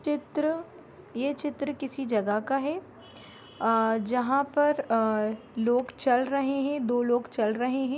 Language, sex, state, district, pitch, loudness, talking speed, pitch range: Bhojpuri, female, Bihar, Saran, 265 Hz, -28 LUFS, 150 wpm, 230-285 Hz